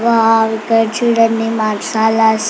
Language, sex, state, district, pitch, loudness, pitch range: Telugu, female, Andhra Pradesh, Chittoor, 225 Hz, -13 LUFS, 220-225 Hz